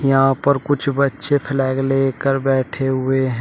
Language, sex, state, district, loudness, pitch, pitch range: Hindi, male, Uttar Pradesh, Shamli, -18 LUFS, 135 Hz, 130-140 Hz